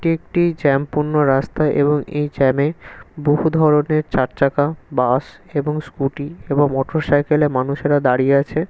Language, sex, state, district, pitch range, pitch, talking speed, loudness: Bengali, male, West Bengal, Kolkata, 140-155 Hz, 145 Hz, 150 wpm, -18 LUFS